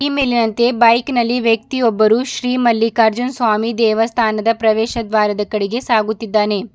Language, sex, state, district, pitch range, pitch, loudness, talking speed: Kannada, female, Karnataka, Bidar, 220-240 Hz, 230 Hz, -15 LUFS, 115 wpm